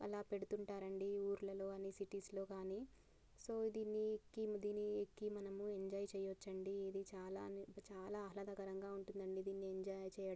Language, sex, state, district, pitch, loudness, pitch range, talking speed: Telugu, female, Telangana, Karimnagar, 200 Hz, -47 LUFS, 195-205 Hz, 110 wpm